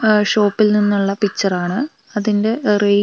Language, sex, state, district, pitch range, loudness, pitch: Malayalam, female, Kerala, Wayanad, 205-215 Hz, -17 LUFS, 210 Hz